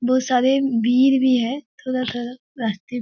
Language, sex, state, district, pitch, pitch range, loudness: Hindi, female, Bihar, Kishanganj, 250 Hz, 245-260 Hz, -20 LUFS